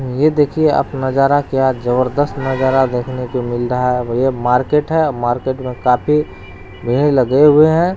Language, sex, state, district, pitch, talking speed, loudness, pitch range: Hindi, male, Bihar, Araria, 130 Hz, 175 wpm, -15 LUFS, 125-145 Hz